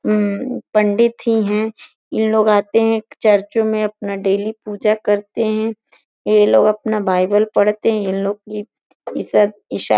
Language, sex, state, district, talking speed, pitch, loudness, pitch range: Hindi, female, Uttar Pradesh, Gorakhpur, 160 wpm, 215 Hz, -17 LUFS, 205-220 Hz